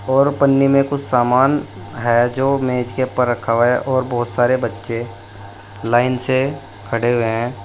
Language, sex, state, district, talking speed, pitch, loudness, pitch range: Hindi, male, Uttar Pradesh, Saharanpur, 175 wpm, 125 Hz, -17 LUFS, 115-130 Hz